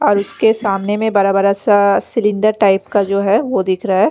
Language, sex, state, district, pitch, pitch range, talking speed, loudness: Hindi, female, Bihar, Patna, 200 Hz, 195-215 Hz, 220 wpm, -14 LUFS